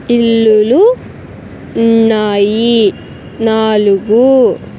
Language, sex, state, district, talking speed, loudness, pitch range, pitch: Telugu, female, Andhra Pradesh, Sri Satya Sai, 40 wpm, -10 LUFS, 215-230 Hz, 225 Hz